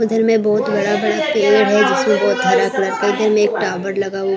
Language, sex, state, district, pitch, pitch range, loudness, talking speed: Hindi, female, Maharashtra, Mumbai Suburban, 210 Hz, 200-220 Hz, -15 LUFS, 220 wpm